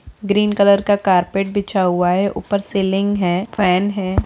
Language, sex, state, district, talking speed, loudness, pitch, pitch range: Hindi, female, Bihar, Jahanabad, 170 wpm, -17 LUFS, 195 Hz, 185-205 Hz